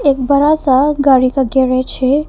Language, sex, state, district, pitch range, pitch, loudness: Hindi, female, Arunachal Pradesh, Papum Pare, 260-285 Hz, 270 Hz, -12 LUFS